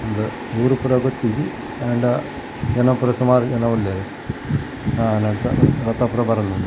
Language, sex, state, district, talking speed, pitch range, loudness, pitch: Tulu, male, Karnataka, Dakshina Kannada, 125 wpm, 115-125 Hz, -20 LUFS, 120 Hz